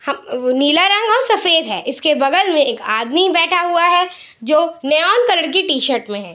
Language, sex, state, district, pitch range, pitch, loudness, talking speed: Hindi, female, Bihar, Saharsa, 275-360 Hz, 325 Hz, -14 LUFS, 210 wpm